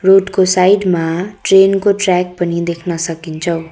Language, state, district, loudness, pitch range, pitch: Nepali, West Bengal, Darjeeling, -14 LUFS, 170-195 Hz, 180 Hz